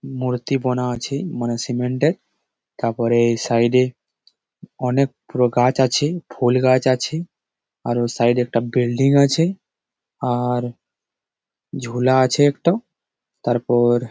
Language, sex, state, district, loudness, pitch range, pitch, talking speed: Bengali, male, West Bengal, Malda, -19 LUFS, 120-135 Hz, 125 Hz, 130 wpm